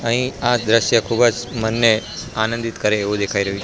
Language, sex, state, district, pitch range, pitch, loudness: Gujarati, male, Gujarat, Gandhinagar, 110-120 Hz, 115 Hz, -18 LUFS